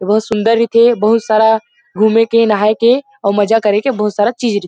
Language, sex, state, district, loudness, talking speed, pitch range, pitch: Chhattisgarhi, male, Chhattisgarh, Rajnandgaon, -13 LUFS, 205 wpm, 210-230 Hz, 220 Hz